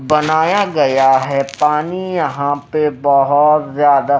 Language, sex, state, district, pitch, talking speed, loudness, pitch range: Hindi, male, Odisha, Nuapada, 145 Hz, 115 wpm, -14 LUFS, 140-155 Hz